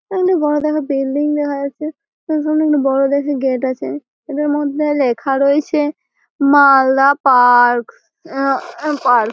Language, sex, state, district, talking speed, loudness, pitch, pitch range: Bengali, female, West Bengal, Malda, 150 wpm, -15 LUFS, 285 Hz, 270-300 Hz